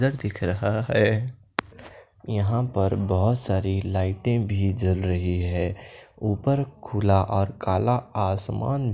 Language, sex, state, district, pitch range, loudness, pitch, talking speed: Hindi, male, Bihar, Kaimur, 95-115 Hz, -25 LUFS, 100 Hz, 115 wpm